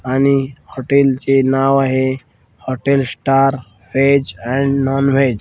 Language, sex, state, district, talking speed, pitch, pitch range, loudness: Marathi, male, Maharashtra, Washim, 120 wpm, 135 Hz, 130-135 Hz, -15 LUFS